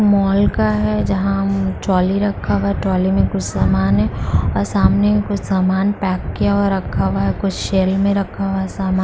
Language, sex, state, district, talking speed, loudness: Hindi, female, Bihar, Kishanganj, 200 wpm, -17 LUFS